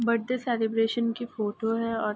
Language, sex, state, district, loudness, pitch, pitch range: Hindi, female, Bihar, Saharsa, -28 LUFS, 230 Hz, 225-235 Hz